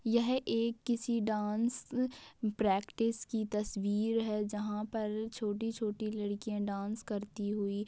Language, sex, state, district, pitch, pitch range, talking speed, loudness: Hindi, female, Jharkhand, Jamtara, 215 Hz, 210-230 Hz, 105 wpm, -35 LUFS